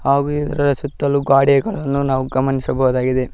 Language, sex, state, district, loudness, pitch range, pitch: Kannada, male, Karnataka, Koppal, -17 LUFS, 130-140 Hz, 140 Hz